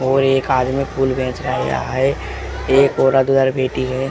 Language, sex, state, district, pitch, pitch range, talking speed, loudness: Hindi, male, Uttar Pradesh, Jalaun, 130 Hz, 115-135 Hz, 145 wpm, -17 LUFS